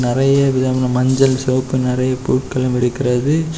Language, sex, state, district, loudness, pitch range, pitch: Tamil, male, Tamil Nadu, Kanyakumari, -16 LUFS, 125-135 Hz, 130 Hz